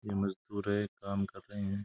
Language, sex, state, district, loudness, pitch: Rajasthani, male, Rajasthan, Churu, -36 LUFS, 100 Hz